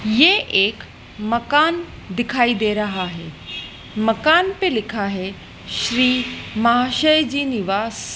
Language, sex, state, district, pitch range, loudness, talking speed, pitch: Hindi, female, Madhya Pradesh, Dhar, 210-280 Hz, -18 LUFS, 120 wpm, 235 Hz